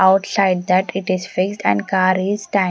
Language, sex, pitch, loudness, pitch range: English, female, 190 Hz, -18 LUFS, 185-200 Hz